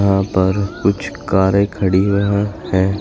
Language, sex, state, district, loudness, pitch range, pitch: Hindi, male, Uttar Pradesh, Shamli, -17 LUFS, 95-100 Hz, 100 Hz